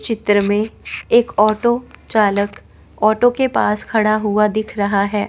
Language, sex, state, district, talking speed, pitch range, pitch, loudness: Hindi, female, Chandigarh, Chandigarh, 145 wpm, 205-225 Hz, 215 Hz, -17 LUFS